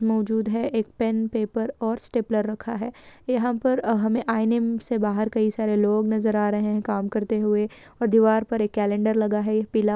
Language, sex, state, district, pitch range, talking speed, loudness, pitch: Hindi, female, Maharashtra, Pune, 215-230 Hz, 200 wpm, -24 LUFS, 220 Hz